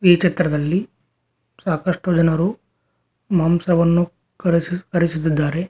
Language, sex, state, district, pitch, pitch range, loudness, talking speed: Kannada, male, Karnataka, Koppal, 175 Hz, 165-180 Hz, -19 LUFS, 65 wpm